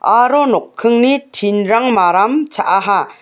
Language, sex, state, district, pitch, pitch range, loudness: Garo, female, Meghalaya, West Garo Hills, 235 Hz, 205-270 Hz, -13 LUFS